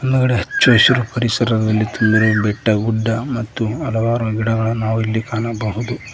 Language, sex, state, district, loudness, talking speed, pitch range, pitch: Kannada, male, Karnataka, Koppal, -17 LUFS, 105 wpm, 110-120 Hz, 115 Hz